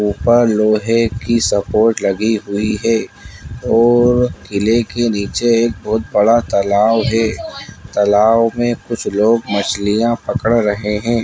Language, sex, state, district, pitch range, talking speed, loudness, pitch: Hindi, male, Bihar, Bhagalpur, 105-115 Hz, 125 wpm, -15 LUFS, 110 Hz